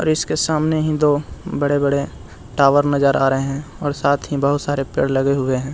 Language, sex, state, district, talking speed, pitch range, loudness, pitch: Hindi, male, Bihar, Jahanabad, 200 wpm, 135-145 Hz, -18 LUFS, 140 Hz